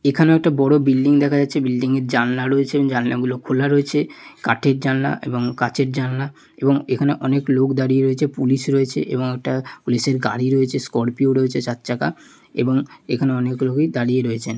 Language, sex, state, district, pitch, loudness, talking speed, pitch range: Bengali, male, West Bengal, Malda, 130 Hz, -19 LUFS, 175 wpm, 125-140 Hz